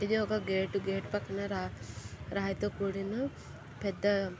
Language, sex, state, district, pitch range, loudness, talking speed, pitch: Telugu, female, Andhra Pradesh, Chittoor, 190-205 Hz, -35 LUFS, 135 wpm, 200 Hz